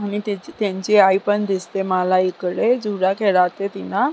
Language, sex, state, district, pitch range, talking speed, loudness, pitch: Marathi, female, Maharashtra, Sindhudurg, 185-205 Hz, 130 wpm, -19 LUFS, 200 Hz